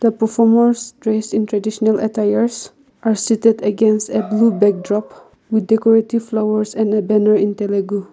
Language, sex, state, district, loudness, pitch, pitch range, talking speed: English, female, Nagaland, Kohima, -16 LUFS, 220 Hz, 210-225 Hz, 140 wpm